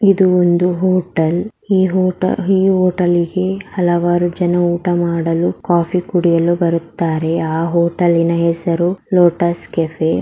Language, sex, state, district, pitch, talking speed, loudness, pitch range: Kannada, female, Karnataka, Mysore, 175 Hz, 110 wpm, -15 LUFS, 170-185 Hz